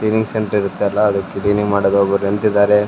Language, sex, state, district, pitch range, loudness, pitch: Kannada, male, Karnataka, Raichur, 100-105 Hz, -16 LUFS, 100 Hz